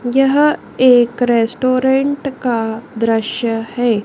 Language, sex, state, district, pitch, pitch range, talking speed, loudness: Hindi, female, Madhya Pradesh, Dhar, 245 Hz, 230-265 Hz, 90 wpm, -15 LUFS